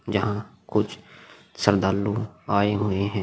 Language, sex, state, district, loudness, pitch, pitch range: Hindi, male, Bihar, Vaishali, -25 LUFS, 100 Hz, 100-105 Hz